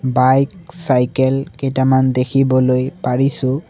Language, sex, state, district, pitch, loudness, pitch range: Assamese, male, Assam, Sonitpur, 130 Hz, -16 LUFS, 130-135 Hz